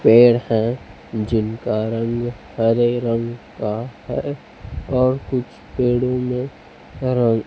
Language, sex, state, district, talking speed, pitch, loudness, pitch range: Hindi, male, Chhattisgarh, Raipur, 105 wpm, 115 Hz, -20 LUFS, 110-125 Hz